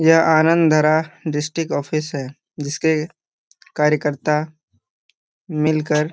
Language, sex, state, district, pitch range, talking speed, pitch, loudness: Hindi, male, Jharkhand, Jamtara, 150-160 Hz, 70 wpm, 155 Hz, -19 LUFS